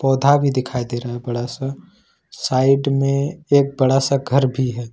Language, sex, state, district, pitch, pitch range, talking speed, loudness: Hindi, male, Jharkhand, Ranchi, 135 Hz, 125-140 Hz, 195 wpm, -19 LUFS